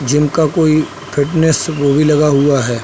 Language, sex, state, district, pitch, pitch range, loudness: Hindi, male, Uttar Pradesh, Budaun, 150 Hz, 140-155 Hz, -13 LUFS